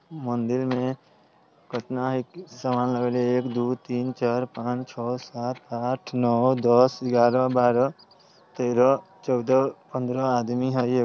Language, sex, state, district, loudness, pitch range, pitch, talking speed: Bajjika, male, Bihar, Vaishali, -24 LUFS, 120-130 Hz, 125 Hz, 140 wpm